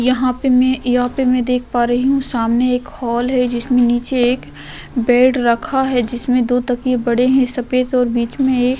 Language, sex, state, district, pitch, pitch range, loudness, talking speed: Hindi, female, Chhattisgarh, Korba, 250 Hz, 240-255 Hz, -16 LUFS, 205 wpm